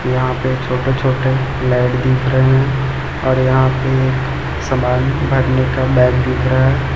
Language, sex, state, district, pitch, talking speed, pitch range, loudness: Hindi, male, Chhattisgarh, Raipur, 130 Hz, 155 wpm, 125-130 Hz, -15 LUFS